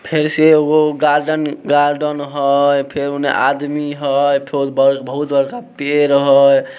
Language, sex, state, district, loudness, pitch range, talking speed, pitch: Maithili, male, Bihar, Samastipur, -15 LUFS, 140-150 Hz, 135 wpm, 145 Hz